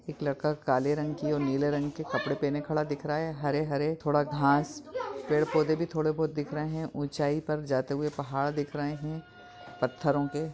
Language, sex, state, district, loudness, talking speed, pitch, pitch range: Hindi, male, Bihar, Madhepura, -30 LUFS, 205 wpm, 150 Hz, 145-155 Hz